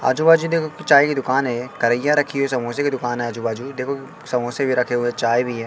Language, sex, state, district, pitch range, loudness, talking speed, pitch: Hindi, male, Madhya Pradesh, Katni, 120-140 Hz, -20 LUFS, 245 wpm, 130 Hz